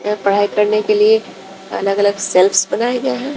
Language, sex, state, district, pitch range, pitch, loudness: Hindi, female, Bihar, West Champaran, 200-255 Hz, 210 Hz, -15 LUFS